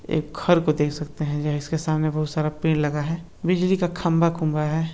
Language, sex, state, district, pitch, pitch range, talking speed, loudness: Hindi, male, Bihar, Muzaffarpur, 155 Hz, 150-170 Hz, 230 wpm, -23 LUFS